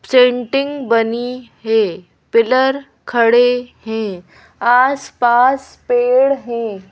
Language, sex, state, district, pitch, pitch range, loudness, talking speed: Hindi, female, Madhya Pradesh, Bhopal, 250 Hz, 235-275 Hz, -15 LUFS, 80 wpm